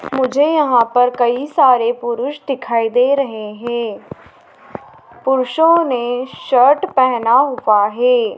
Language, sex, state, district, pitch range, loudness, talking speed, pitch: Hindi, female, Madhya Pradesh, Dhar, 240-280 Hz, -15 LUFS, 115 wpm, 255 Hz